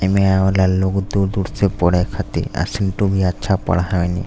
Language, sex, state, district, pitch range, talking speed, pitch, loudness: Bhojpuri, male, Uttar Pradesh, Deoria, 90-100 Hz, 155 wpm, 95 Hz, -18 LUFS